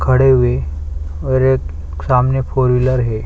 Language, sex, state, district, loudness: Hindi, male, Chhattisgarh, Sukma, -15 LUFS